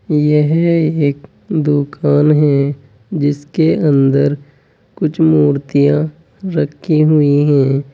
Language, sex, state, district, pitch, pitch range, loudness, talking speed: Hindi, male, Uttar Pradesh, Saharanpur, 145 Hz, 140-155 Hz, -14 LUFS, 85 wpm